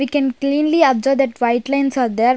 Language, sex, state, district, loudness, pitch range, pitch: English, female, Punjab, Kapurthala, -17 LUFS, 245-275 Hz, 270 Hz